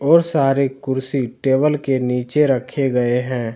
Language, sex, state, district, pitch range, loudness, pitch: Hindi, male, Jharkhand, Deoghar, 125-140 Hz, -18 LUFS, 135 Hz